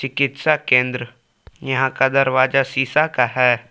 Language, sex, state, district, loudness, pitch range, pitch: Hindi, male, Jharkhand, Palamu, -17 LUFS, 125-135 Hz, 135 Hz